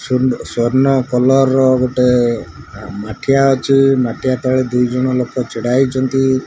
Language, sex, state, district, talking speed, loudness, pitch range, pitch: Odia, male, Odisha, Malkangiri, 130 wpm, -14 LUFS, 125-135 Hz, 130 Hz